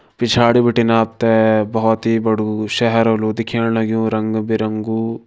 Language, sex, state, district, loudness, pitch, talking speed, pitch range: Kumaoni, male, Uttarakhand, Tehri Garhwal, -16 LUFS, 110 Hz, 135 wpm, 110-115 Hz